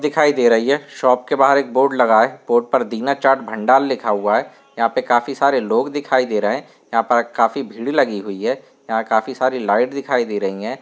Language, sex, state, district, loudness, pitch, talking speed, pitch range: Hindi, male, Uttar Pradesh, Varanasi, -18 LUFS, 125 Hz, 245 wpm, 115-140 Hz